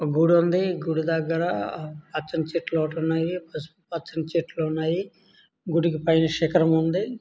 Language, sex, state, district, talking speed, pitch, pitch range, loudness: Telugu, male, Andhra Pradesh, Srikakulam, 135 wpm, 165 Hz, 160-170 Hz, -24 LUFS